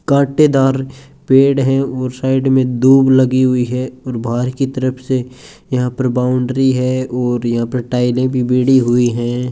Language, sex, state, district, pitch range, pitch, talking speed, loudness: Hindi, male, Rajasthan, Churu, 125-135 Hz, 130 Hz, 170 wpm, -15 LUFS